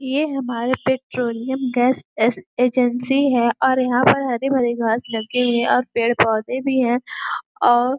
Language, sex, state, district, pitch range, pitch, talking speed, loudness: Hindi, female, Uttar Pradesh, Gorakhpur, 235-260 Hz, 250 Hz, 165 wpm, -19 LUFS